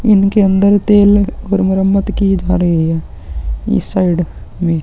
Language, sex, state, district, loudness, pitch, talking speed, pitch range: Hindi, male, Uttarakhand, Tehri Garhwal, -13 LUFS, 190 Hz, 150 wpm, 170-200 Hz